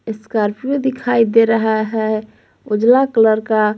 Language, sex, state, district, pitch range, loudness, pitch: Hindi, female, Jharkhand, Palamu, 215-235 Hz, -16 LUFS, 225 Hz